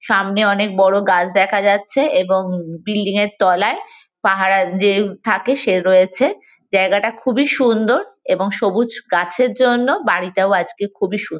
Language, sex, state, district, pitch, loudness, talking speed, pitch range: Bengali, female, West Bengal, Kolkata, 205 Hz, -16 LUFS, 135 wpm, 190-240 Hz